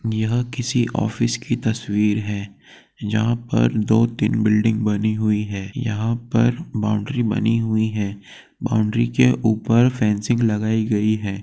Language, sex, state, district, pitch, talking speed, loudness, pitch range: Hindi, male, Bihar, Gopalganj, 110 Hz, 130 wpm, -20 LUFS, 105-115 Hz